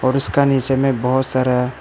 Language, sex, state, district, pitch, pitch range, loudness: Hindi, male, Arunachal Pradesh, Papum Pare, 130 Hz, 125-135 Hz, -17 LUFS